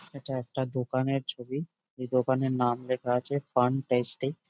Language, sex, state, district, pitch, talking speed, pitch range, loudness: Bengali, male, West Bengal, Jhargram, 130 Hz, 160 wpm, 125-135 Hz, -29 LUFS